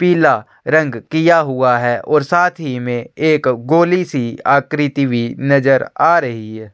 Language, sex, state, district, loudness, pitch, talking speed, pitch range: Hindi, male, Chhattisgarh, Sukma, -15 LUFS, 140 Hz, 160 wpm, 125-160 Hz